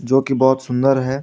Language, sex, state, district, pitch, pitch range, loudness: Hindi, male, Jharkhand, Ranchi, 130 Hz, 130-135 Hz, -17 LUFS